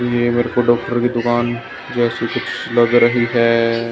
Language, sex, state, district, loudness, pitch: Hindi, male, Haryana, Jhajjar, -17 LUFS, 120 Hz